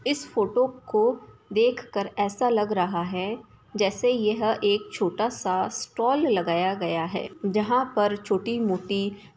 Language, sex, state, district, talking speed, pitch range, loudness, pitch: Hindi, female, Bihar, Samastipur, 135 wpm, 195-240 Hz, -25 LUFS, 210 Hz